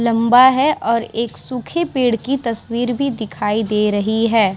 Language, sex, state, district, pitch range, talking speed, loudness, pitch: Hindi, female, Bihar, Vaishali, 220-255 Hz, 170 wpm, -17 LUFS, 235 Hz